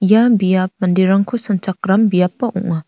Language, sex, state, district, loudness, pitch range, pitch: Garo, female, Meghalaya, North Garo Hills, -15 LUFS, 185-215 Hz, 190 Hz